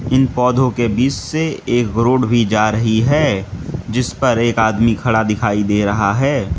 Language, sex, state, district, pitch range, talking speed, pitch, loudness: Hindi, male, Mizoram, Aizawl, 110-125 Hz, 180 wpm, 115 Hz, -16 LUFS